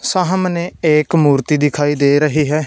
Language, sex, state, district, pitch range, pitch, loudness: Hindi, male, Punjab, Fazilka, 145-170 Hz, 150 Hz, -15 LUFS